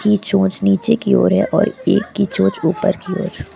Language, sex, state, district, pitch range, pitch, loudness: Hindi, female, Uttar Pradesh, Lucknow, 180-200 Hz, 195 Hz, -16 LUFS